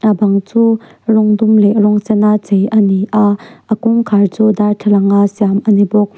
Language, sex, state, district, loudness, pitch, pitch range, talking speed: Mizo, female, Mizoram, Aizawl, -12 LUFS, 210 Hz, 205-220 Hz, 215 wpm